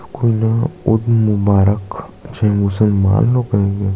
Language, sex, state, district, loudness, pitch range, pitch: Hindi, male, Chhattisgarh, Sukma, -15 LUFS, 100-115 Hz, 105 Hz